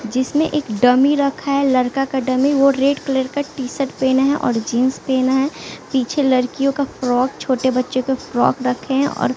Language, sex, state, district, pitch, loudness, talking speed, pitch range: Hindi, female, Bihar, West Champaran, 265 Hz, -18 LUFS, 205 wpm, 255-275 Hz